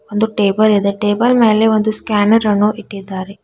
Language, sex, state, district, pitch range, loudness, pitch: Kannada, female, Karnataka, Bidar, 200-220 Hz, -14 LUFS, 210 Hz